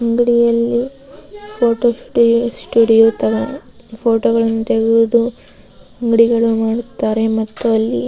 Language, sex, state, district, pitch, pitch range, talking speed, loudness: Kannada, female, Karnataka, Raichur, 230 Hz, 225-235 Hz, 80 wpm, -15 LUFS